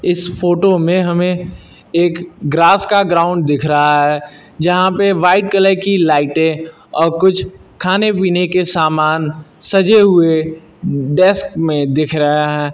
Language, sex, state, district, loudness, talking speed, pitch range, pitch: Hindi, male, Uttar Pradesh, Lucknow, -13 LUFS, 140 wpm, 155-185 Hz, 170 Hz